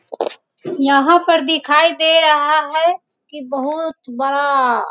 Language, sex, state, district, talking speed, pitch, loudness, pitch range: Hindi, female, Bihar, Sitamarhi, 110 wpm, 305 Hz, -15 LUFS, 280-325 Hz